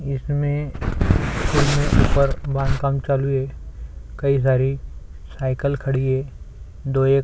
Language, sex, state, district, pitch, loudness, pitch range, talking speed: Hindi, male, Chhattisgarh, Sukma, 135 Hz, -21 LUFS, 130-140 Hz, 115 wpm